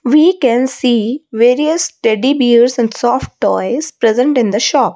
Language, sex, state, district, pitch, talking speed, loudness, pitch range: English, female, Odisha, Malkangiri, 245 Hz, 155 wpm, -13 LUFS, 235-285 Hz